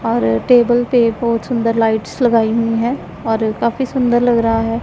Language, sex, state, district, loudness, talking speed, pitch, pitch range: Hindi, female, Punjab, Pathankot, -15 LUFS, 185 wpm, 230 Hz, 225-240 Hz